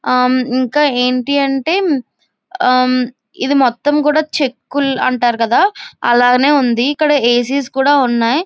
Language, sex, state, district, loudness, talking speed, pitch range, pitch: Telugu, female, Andhra Pradesh, Visakhapatnam, -14 LUFS, 135 wpm, 250-290 Hz, 265 Hz